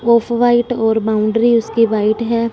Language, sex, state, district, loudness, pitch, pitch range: Hindi, female, Punjab, Fazilka, -15 LUFS, 230 Hz, 220-235 Hz